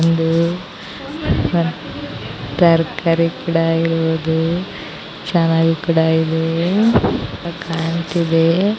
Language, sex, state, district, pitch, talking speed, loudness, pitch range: Kannada, female, Karnataka, Bijapur, 165 Hz, 50 wpm, -17 LUFS, 160-170 Hz